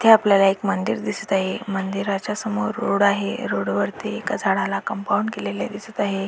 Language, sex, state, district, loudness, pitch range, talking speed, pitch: Marathi, female, Maharashtra, Dhule, -22 LUFS, 195-210 Hz, 155 wpm, 200 Hz